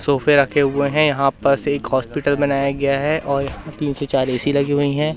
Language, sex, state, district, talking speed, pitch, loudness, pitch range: Hindi, male, Madhya Pradesh, Katni, 230 wpm, 140 Hz, -18 LUFS, 140-145 Hz